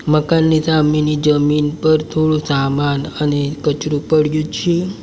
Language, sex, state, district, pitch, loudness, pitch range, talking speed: Gujarati, male, Gujarat, Valsad, 150 Hz, -16 LUFS, 145-155 Hz, 120 wpm